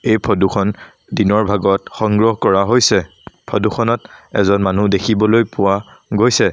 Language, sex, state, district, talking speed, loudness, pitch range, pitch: Assamese, male, Assam, Sonitpur, 140 wpm, -15 LUFS, 100-110 Hz, 105 Hz